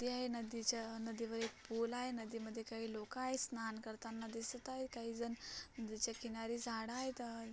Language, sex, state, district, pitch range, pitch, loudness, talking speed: Marathi, female, Maharashtra, Solapur, 225-240 Hz, 230 Hz, -44 LUFS, 160 wpm